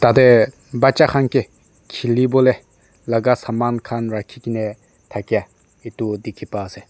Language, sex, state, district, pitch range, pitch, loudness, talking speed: Nagamese, male, Nagaland, Dimapur, 110-130 Hz, 120 Hz, -18 LUFS, 120 wpm